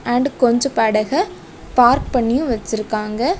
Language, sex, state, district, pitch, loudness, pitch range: Tamil, female, Tamil Nadu, Kanyakumari, 245 Hz, -18 LUFS, 220-265 Hz